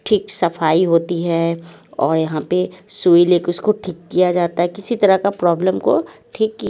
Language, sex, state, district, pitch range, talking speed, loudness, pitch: Hindi, female, Haryana, Charkhi Dadri, 170-190 Hz, 195 wpm, -17 LUFS, 180 Hz